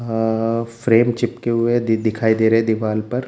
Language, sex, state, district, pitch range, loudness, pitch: Hindi, male, Bihar, Jamui, 110-120 Hz, -18 LUFS, 115 Hz